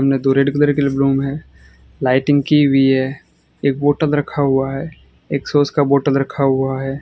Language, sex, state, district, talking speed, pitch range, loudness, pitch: Hindi, male, Rajasthan, Bikaner, 165 wpm, 135-145 Hz, -16 LUFS, 140 Hz